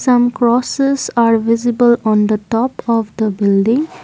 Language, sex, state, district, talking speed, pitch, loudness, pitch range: English, female, Assam, Kamrup Metropolitan, 150 wpm, 235 Hz, -14 LUFS, 220-245 Hz